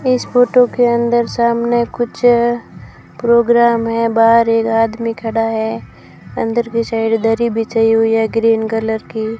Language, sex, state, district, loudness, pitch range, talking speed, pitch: Hindi, female, Rajasthan, Bikaner, -14 LUFS, 225-235 Hz, 145 wpm, 230 Hz